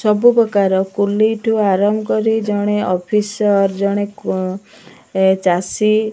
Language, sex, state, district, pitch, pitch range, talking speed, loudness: Odia, female, Odisha, Malkangiri, 205 Hz, 195-215 Hz, 100 wpm, -16 LUFS